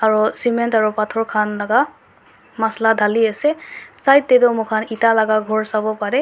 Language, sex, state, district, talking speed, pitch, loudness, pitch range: Nagamese, female, Nagaland, Dimapur, 175 wpm, 220 Hz, -17 LUFS, 215-230 Hz